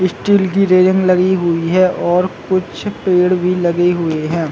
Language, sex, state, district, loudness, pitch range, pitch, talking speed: Hindi, male, Chhattisgarh, Bilaspur, -14 LUFS, 175-185 Hz, 180 Hz, 170 wpm